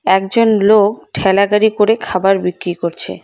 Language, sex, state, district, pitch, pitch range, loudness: Bengali, female, West Bengal, Cooch Behar, 195 Hz, 185-215 Hz, -14 LUFS